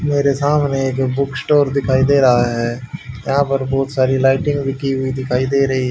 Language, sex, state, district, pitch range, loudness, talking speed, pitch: Hindi, male, Haryana, Rohtak, 130-140 Hz, -16 LUFS, 205 wpm, 135 Hz